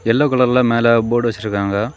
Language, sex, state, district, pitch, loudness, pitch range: Tamil, male, Tamil Nadu, Kanyakumari, 115 Hz, -16 LUFS, 110-125 Hz